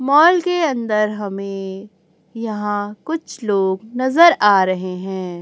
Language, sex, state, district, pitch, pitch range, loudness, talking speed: Hindi, female, Chhattisgarh, Raipur, 210 Hz, 190-265 Hz, -18 LUFS, 120 wpm